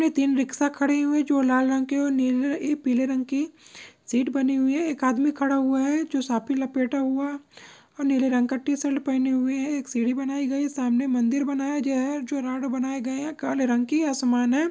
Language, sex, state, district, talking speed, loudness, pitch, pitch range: Maithili, female, Bihar, Begusarai, 230 wpm, -24 LUFS, 270 Hz, 260-285 Hz